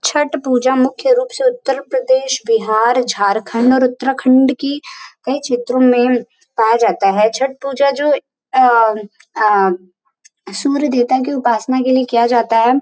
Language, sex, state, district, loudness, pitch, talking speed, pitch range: Hindi, female, Uttar Pradesh, Varanasi, -14 LUFS, 255 Hz, 150 wpm, 235-275 Hz